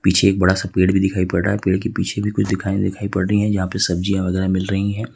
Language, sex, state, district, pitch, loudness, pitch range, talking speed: Hindi, male, Jharkhand, Ranchi, 95 Hz, -19 LUFS, 95-100 Hz, 300 wpm